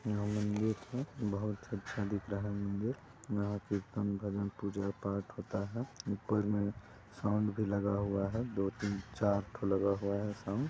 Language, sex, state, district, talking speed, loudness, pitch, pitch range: Hindi, male, Chhattisgarh, Balrampur, 175 wpm, -37 LUFS, 105 Hz, 100-105 Hz